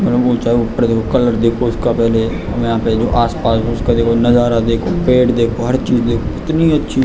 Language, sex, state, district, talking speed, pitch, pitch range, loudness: Hindi, male, Uttarakhand, Tehri Garhwal, 205 wpm, 115 Hz, 115-120 Hz, -14 LUFS